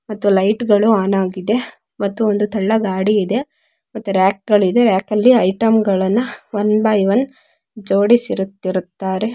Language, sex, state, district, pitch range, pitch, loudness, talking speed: Kannada, female, Karnataka, Mysore, 195-230 Hz, 210 Hz, -16 LUFS, 120 wpm